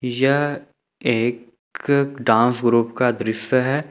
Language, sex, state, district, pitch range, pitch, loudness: Hindi, male, Jharkhand, Ranchi, 115-135 Hz, 125 Hz, -19 LUFS